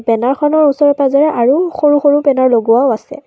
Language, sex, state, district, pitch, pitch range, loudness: Assamese, female, Assam, Kamrup Metropolitan, 280 Hz, 250-295 Hz, -12 LUFS